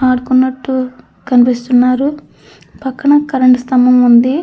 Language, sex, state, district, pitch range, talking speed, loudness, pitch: Telugu, female, Andhra Pradesh, Krishna, 250-265 Hz, 80 wpm, -11 LUFS, 255 Hz